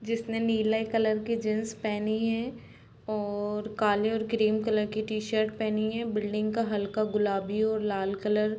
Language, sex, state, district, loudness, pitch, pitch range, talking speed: Hindi, female, Bihar, East Champaran, -29 LUFS, 215 Hz, 210-220 Hz, 175 wpm